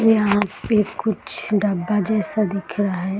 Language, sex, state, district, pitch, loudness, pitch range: Hindi, male, Bihar, East Champaran, 210 Hz, -21 LUFS, 200-215 Hz